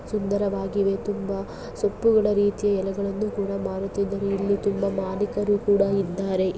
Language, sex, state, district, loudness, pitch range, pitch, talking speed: Kannada, female, Karnataka, Bellary, -24 LUFS, 195-205 Hz, 200 Hz, 100 wpm